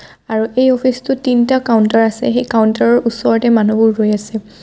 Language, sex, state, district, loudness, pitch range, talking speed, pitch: Assamese, female, Assam, Kamrup Metropolitan, -13 LUFS, 220-250 Hz, 180 wpm, 230 Hz